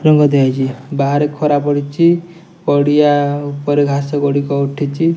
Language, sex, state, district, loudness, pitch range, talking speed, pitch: Odia, male, Odisha, Nuapada, -15 LUFS, 140-150 Hz, 125 wpm, 145 Hz